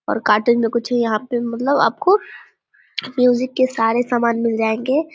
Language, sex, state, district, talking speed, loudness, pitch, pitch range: Hindi, female, Bihar, Vaishali, 165 wpm, -18 LUFS, 240 Hz, 230-255 Hz